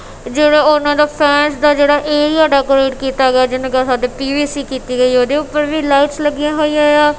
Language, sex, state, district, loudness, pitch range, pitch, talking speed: Punjabi, female, Punjab, Kapurthala, -13 LUFS, 265-300 Hz, 290 Hz, 200 wpm